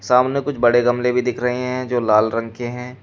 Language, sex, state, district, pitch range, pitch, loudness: Hindi, male, Uttar Pradesh, Shamli, 120-125 Hz, 125 Hz, -19 LUFS